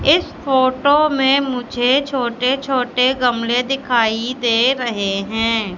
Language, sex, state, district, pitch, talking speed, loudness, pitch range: Hindi, female, Madhya Pradesh, Katni, 250 Hz, 115 wpm, -17 LUFS, 235-270 Hz